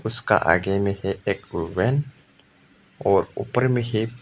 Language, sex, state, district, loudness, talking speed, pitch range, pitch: Hindi, male, Arunachal Pradesh, Papum Pare, -23 LUFS, 115 wpm, 100-125 Hz, 110 Hz